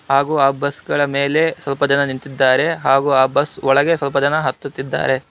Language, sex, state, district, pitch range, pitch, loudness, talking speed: Kannada, male, Karnataka, Bangalore, 135-145 Hz, 140 Hz, -17 LUFS, 170 wpm